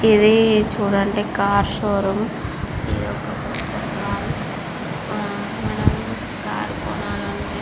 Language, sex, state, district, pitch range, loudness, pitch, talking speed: Telugu, male, Andhra Pradesh, Visakhapatnam, 200-215 Hz, -21 LUFS, 210 Hz, 55 wpm